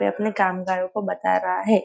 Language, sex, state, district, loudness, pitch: Hindi, female, Maharashtra, Nagpur, -23 LUFS, 185 Hz